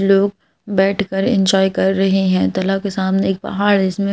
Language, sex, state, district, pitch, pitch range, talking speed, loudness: Hindi, female, Madhya Pradesh, Bhopal, 195 Hz, 190-200 Hz, 175 wpm, -16 LUFS